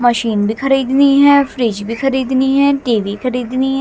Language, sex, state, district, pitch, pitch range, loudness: Hindi, female, Haryana, Jhajjar, 260 Hz, 235-270 Hz, -14 LUFS